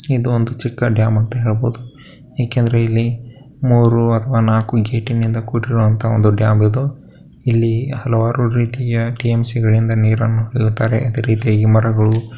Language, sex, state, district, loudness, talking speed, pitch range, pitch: Kannada, male, Karnataka, Bellary, -16 LUFS, 135 wpm, 110-120 Hz, 115 Hz